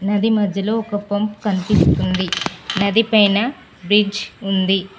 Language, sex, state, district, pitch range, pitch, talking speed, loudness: Telugu, female, Telangana, Mahabubabad, 195-210 Hz, 205 Hz, 110 wpm, -18 LUFS